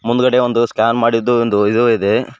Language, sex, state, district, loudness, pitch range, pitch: Kannada, male, Karnataka, Koppal, -14 LUFS, 115-120 Hz, 115 Hz